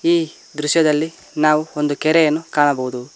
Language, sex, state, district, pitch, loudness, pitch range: Kannada, male, Karnataka, Koppal, 150 Hz, -18 LUFS, 145-160 Hz